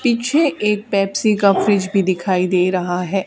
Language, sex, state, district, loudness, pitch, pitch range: Hindi, female, Haryana, Charkhi Dadri, -17 LUFS, 195 Hz, 185-210 Hz